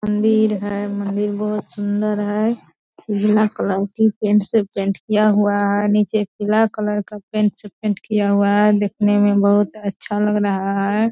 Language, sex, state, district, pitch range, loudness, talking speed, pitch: Hindi, female, Bihar, Purnia, 205-210 Hz, -18 LUFS, 195 wpm, 210 Hz